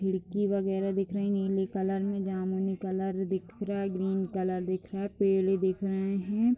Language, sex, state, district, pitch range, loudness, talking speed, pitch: Hindi, female, Uttar Pradesh, Deoria, 190-195 Hz, -31 LUFS, 180 wpm, 195 Hz